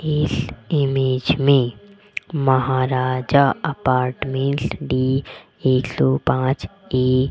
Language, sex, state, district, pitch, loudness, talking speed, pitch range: Hindi, female, Rajasthan, Jaipur, 130 Hz, -20 LUFS, 90 wpm, 130-140 Hz